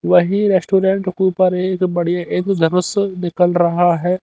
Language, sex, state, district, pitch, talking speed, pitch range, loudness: Hindi, male, Haryana, Jhajjar, 180 Hz, 125 wpm, 175-190 Hz, -16 LUFS